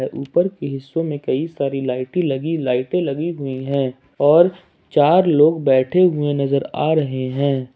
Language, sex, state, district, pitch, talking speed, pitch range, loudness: Hindi, male, Jharkhand, Ranchi, 145 Hz, 160 wpm, 135-165 Hz, -18 LUFS